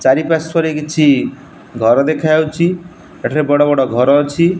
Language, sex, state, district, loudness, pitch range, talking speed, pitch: Odia, male, Odisha, Nuapada, -14 LUFS, 145-165 Hz, 115 wpm, 155 Hz